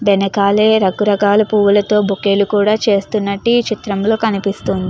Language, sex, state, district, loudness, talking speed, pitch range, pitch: Telugu, female, Andhra Pradesh, Chittoor, -14 LUFS, 110 wpm, 200-215 Hz, 205 Hz